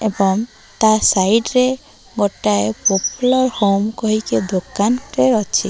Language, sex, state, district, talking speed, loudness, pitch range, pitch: Odia, female, Odisha, Malkangiri, 105 wpm, -16 LUFS, 195-235 Hz, 215 Hz